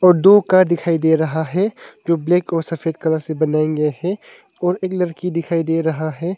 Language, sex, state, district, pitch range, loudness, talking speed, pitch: Hindi, male, Arunachal Pradesh, Longding, 160-180 Hz, -18 LUFS, 205 wpm, 165 Hz